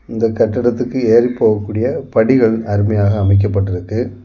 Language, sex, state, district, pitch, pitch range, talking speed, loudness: Tamil, male, Tamil Nadu, Kanyakumari, 110 Hz, 100-120 Hz, 115 wpm, -15 LUFS